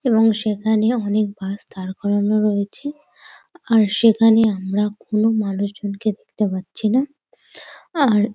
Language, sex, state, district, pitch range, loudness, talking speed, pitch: Bengali, female, West Bengal, Dakshin Dinajpur, 205-225 Hz, -19 LUFS, 120 wpm, 215 Hz